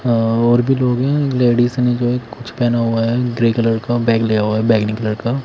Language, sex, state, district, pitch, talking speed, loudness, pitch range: Hindi, male, Himachal Pradesh, Shimla, 120 Hz, 240 wpm, -16 LUFS, 115-125 Hz